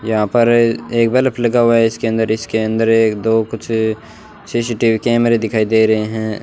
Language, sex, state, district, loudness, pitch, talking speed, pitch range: Hindi, male, Rajasthan, Bikaner, -15 LUFS, 115 Hz, 185 wpm, 110-115 Hz